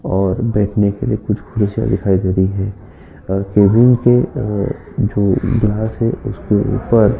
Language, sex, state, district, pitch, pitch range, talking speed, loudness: Hindi, male, Uttar Pradesh, Jyotiba Phule Nagar, 105 Hz, 100-120 Hz, 160 wpm, -16 LUFS